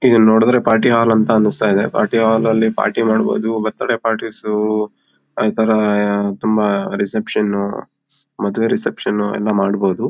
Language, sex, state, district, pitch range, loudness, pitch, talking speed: Kannada, male, Karnataka, Mysore, 105-115 Hz, -16 LUFS, 110 Hz, 125 wpm